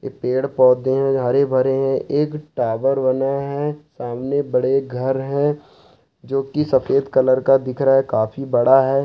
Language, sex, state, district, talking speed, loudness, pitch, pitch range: Hindi, male, Bihar, Saharsa, 160 wpm, -19 LUFS, 135 Hz, 130-140 Hz